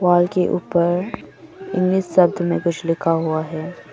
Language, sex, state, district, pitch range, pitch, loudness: Hindi, female, Arunachal Pradesh, Papum Pare, 165-185 Hz, 175 Hz, -19 LUFS